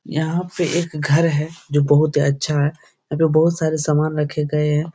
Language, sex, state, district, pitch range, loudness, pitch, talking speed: Hindi, male, Bihar, Jahanabad, 150-160 Hz, -19 LUFS, 155 Hz, 205 wpm